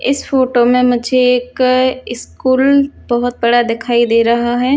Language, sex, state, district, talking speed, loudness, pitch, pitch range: Hindi, female, Haryana, Charkhi Dadri, 150 wpm, -13 LUFS, 250 Hz, 240-260 Hz